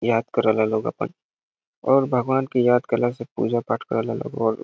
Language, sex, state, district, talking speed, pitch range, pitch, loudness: Bhojpuri, male, Bihar, Saran, 195 wpm, 115-130 Hz, 120 Hz, -22 LUFS